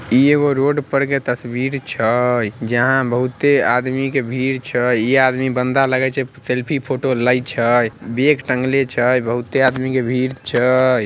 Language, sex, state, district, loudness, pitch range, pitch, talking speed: Magahi, male, Bihar, Samastipur, -17 LUFS, 125-135 Hz, 130 Hz, 165 wpm